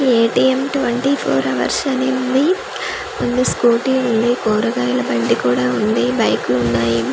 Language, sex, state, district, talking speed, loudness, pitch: Telugu, female, Andhra Pradesh, Manyam, 135 wpm, -17 LUFS, 230 Hz